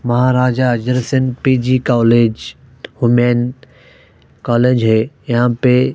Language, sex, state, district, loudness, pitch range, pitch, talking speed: Hindi, male, Haryana, Jhajjar, -14 LUFS, 120-130 Hz, 125 Hz, 90 wpm